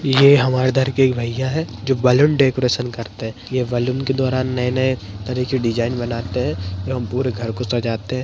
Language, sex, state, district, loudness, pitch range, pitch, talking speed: Hindi, female, Bihar, Madhepura, -19 LUFS, 115-130 Hz, 125 Hz, 195 wpm